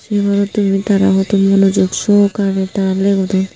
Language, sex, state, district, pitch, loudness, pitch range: Chakma, female, Tripura, Unakoti, 195 Hz, -14 LUFS, 190-200 Hz